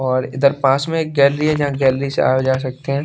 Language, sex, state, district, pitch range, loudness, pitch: Hindi, male, Bihar, West Champaran, 130-145 Hz, -17 LUFS, 140 Hz